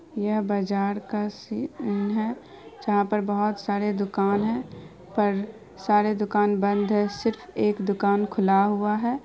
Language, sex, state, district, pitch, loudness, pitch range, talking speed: Hindi, female, Bihar, Araria, 205 Hz, -25 LUFS, 200-215 Hz, 145 wpm